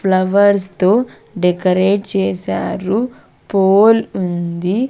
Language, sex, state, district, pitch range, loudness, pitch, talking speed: Telugu, female, Andhra Pradesh, Sri Satya Sai, 180-205 Hz, -15 LUFS, 190 Hz, 75 wpm